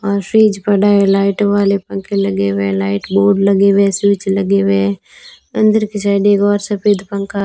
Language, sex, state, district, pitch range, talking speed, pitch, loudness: Hindi, female, Rajasthan, Bikaner, 195-205 Hz, 220 wpm, 200 Hz, -14 LUFS